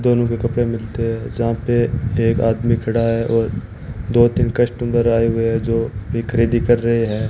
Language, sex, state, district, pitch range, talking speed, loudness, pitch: Hindi, male, Rajasthan, Bikaner, 115-120 Hz, 195 wpm, -18 LUFS, 115 Hz